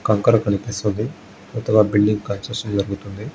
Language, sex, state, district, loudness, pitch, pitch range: Telugu, male, Andhra Pradesh, Guntur, -20 LUFS, 105 Hz, 100-110 Hz